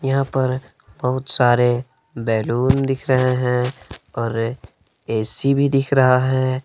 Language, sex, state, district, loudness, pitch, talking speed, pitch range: Hindi, male, Jharkhand, Palamu, -19 LUFS, 125 Hz, 125 wpm, 115-130 Hz